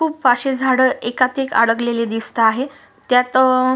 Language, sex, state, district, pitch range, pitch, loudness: Marathi, female, Maharashtra, Sindhudurg, 235-265 Hz, 255 Hz, -17 LUFS